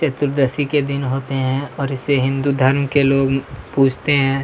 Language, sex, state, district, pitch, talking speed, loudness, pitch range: Hindi, male, Chhattisgarh, Kabirdham, 135 Hz, 190 wpm, -18 LUFS, 135-140 Hz